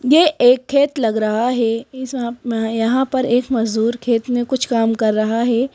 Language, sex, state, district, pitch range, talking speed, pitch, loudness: Hindi, female, Madhya Pradesh, Bhopal, 225-260 Hz, 175 wpm, 240 Hz, -17 LUFS